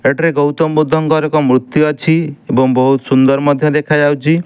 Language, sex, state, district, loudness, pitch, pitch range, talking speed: Odia, male, Odisha, Nuapada, -13 LUFS, 150 Hz, 135-155 Hz, 150 wpm